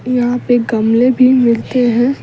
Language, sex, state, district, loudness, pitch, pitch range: Hindi, female, Bihar, Patna, -12 LUFS, 245 Hz, 235-255 Hz